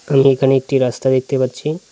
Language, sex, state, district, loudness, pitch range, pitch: Bengali, male, West Bengal, Cooch Behar, -16 LUFS, 130-135 Hz, 135 Hz